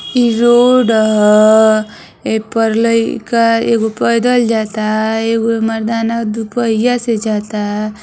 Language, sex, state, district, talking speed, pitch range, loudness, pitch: Bhojpuri, female, Uttar Pradesh, Deoria, 95 wpm, 215-230 Hz, -13 LUFS, 225 Hz